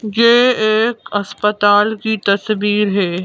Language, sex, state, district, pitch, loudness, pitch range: Hindi, female, Madhya Pradesh, Bhopal, 210 Hz, -14 LUFS, 205-220 Hz